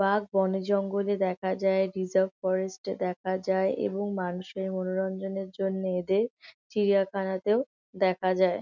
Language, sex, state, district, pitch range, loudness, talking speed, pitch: Bengali, female, West Bengal, Kolkata, 185-195 Hz, -29 LUFS, 125 wpm, 190 Hz